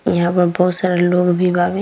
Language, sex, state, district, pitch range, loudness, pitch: Bhojpuri, female, Bihar, East Champaran, 175-180 Hz, -15 LUFS, 180 Hz